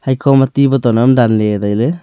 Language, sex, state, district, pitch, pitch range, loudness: Wancho, male, Arunachal Pradesh, Longding, 130 Hz, 115-135 Hz, -12 LUFS